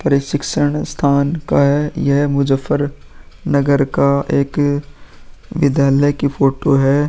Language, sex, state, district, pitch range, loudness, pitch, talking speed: Hindi, male, Uttar Pradesh, Muzaffarnagar, 140-145 Hz, -16 LUFS, 140 Hz, 110 wpm